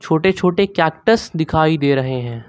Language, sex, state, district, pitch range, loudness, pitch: Hindi, male, Uttar Pradesh, Lucknow, 140-185 Hz, -17 LUFS, 160 Hz